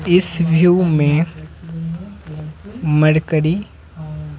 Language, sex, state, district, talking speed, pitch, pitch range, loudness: Hindi, male, Bihar, Patna, 55 wpm, 160 Hz, 155-175 Hz, -16 LUFS